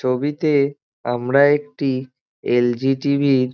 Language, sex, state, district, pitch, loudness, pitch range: Bengali, male, West Bengal, Dakshin Dinajpur, 135 Hz, -19 LUFS, 125-140 Hz